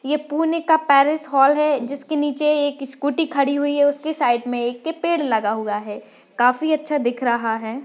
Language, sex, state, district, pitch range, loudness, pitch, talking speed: Hindi, female, Maharashtra, Pune, 245-300 Hz, -20 LUFS, 285 Hz, 205 wpm